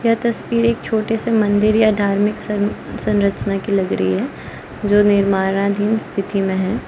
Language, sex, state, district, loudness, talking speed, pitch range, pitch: Hindi, female, Arunachal Pradesh, Lower Dibang Valley, -18 LUFS, 165 wpm, 195-215 Hz, 205 Hz